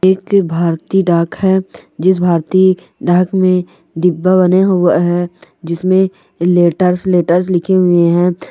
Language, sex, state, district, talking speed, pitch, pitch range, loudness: Hindi, female, Andhra Pradesh, Guntur, 125 wpm, 180 Hz, 175-185 Hz, -13 LUFS